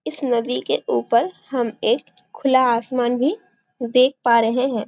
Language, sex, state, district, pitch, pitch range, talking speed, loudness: Hindi, female, Chhattisgarh, Bastar, 245 Hz, 235-260 Hz, 160 wpm, -20 LUFS